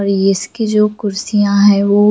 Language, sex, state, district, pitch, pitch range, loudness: Hindi, female, Jharkhand, Jamtara, 205 Hz, 200-210 Hz, -13 LUFS